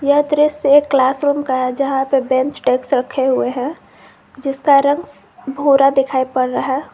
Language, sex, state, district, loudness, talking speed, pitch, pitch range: Hindi, female, Jharkhand, Garhwa, -16 LUFS, 180 wpm, 275 Hz, 260-285 Hz